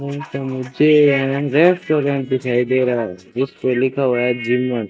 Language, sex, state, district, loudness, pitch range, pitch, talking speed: Hindi, male, Rajasthan, Bikaner, -18 LUFS, 125-140 Hz, 130 Hz, 160 wpm